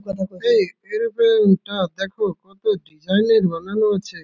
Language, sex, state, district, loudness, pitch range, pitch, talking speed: Bengali, male, West Bengal, Malda, -20 LUFS, 190-225 Hz, 200 Hz, 125 wpm